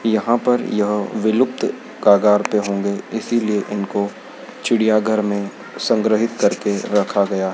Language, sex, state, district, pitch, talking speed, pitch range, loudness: Hindi, male, Madhya Pradesh, Dhar, 105 Hz, 120 wpm, 100-110 Hz, -19 LUFS